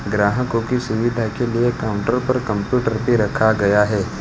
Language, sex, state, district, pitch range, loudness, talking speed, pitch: Hindi, male, Gujarat, Valsad, 105-125 Hz, -19 LUFS, 170 wpm, 115 Hz